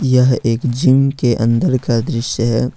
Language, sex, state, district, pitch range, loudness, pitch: Hindi, male, Jharkhand, Ranchi, 115-130 Hz, -15 LUFS, 125 Hz